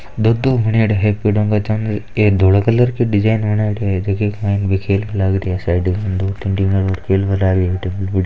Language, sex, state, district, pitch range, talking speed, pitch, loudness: Marwari, male, Rajasthan, Nagaur, 95-105 Hz, 150 wpm, 100 Hz, -16 LUFS